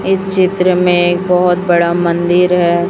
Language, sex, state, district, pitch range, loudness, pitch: Hindi, female, Chhattisgarh, Raipur, 175-185 Hz, -12 LUFS, 180 Hz